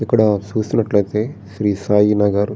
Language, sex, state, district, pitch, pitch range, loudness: Telugu, male, Andhra Pradesh, Srikakulam, 105 Hz, 100-110 Hz, -17 LUFS